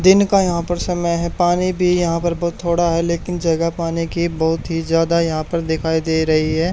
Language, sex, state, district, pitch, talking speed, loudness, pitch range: Hindi, male, Haryana, Charkhi Dadri, 170 Hz, 230 wpm, -18 LUFS, 165-175 Hz